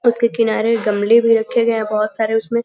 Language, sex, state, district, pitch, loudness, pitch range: Hindi, female, Uttar Pradesh, Gorakhpur, 230 Hz, -16 LUFS, 220-235 Hz